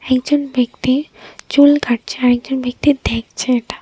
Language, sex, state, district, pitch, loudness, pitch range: Bengali, female, Tripura, West Tripura, 255 Hz, -16 LUFS, 240-285 Hz